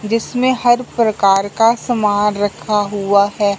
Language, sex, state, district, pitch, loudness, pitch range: Hindi, male, Punjab, Fazilka, 210 Hz, -15 LUFS, 205-230 Hz